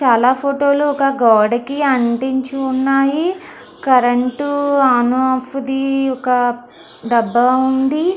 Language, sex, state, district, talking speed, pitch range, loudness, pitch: Telugu, female, Andhra Pradesh, Anantapur, 110 wpm, 245-280 Hz, -15 LUFS, 265 Hz